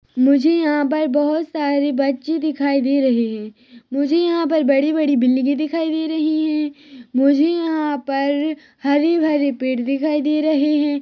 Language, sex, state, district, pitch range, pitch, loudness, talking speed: Hindi, female, Chhattisgarh, Rajnandgaon, 275-310 Hz, 290 Hz, -18 LUFS, 165 wpm